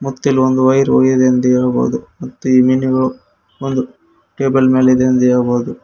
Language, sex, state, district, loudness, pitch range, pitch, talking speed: Kannada, male, Karnataka, Koppal, -14 LUFS, 125-130 Hz, 130 Hz, 155 wpm